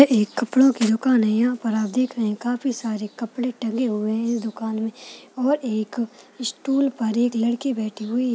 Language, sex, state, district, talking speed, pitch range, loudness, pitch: Hindi, female, Chhattisgarh, Balrampur, 200 wpm, 220-250 Hz, -23 LUFS, 235 Hz